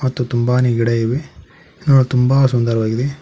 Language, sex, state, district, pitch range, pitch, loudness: Kannada, male, Karnataka, Koppal, 120-135 Hz, 125 Hz, -16 LUFS